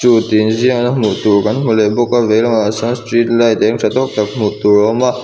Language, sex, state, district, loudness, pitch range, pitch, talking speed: Mizo, male, Mizoram, Aizawl, -13 LUFS, 110-120 Hz, 115 Hz, 240 wpm